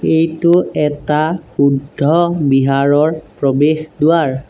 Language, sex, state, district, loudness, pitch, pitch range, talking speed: Assamese, male, Assam, Sonitpur, -14 LUFS, 150 Hz, 140-160 Hz, 80 wpm